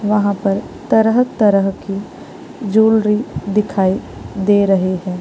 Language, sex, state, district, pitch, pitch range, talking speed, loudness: Hindi, female, Bihar, East Champaran, 205 Hz, 195-220 Hz, 105 wpm, -16 LUFS